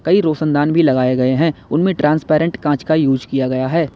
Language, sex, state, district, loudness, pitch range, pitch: Hindi, male, Uttar Pradesh, Lalitpur, -16 LUFS, 130-160 Hz, 150 Hz